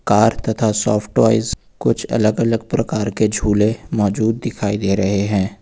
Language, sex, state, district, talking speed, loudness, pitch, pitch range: Hindi, male, Uttar Pradesh, Lucknow, 160 wpm, -18 LUFS, 105 Hz, 100-110 Hz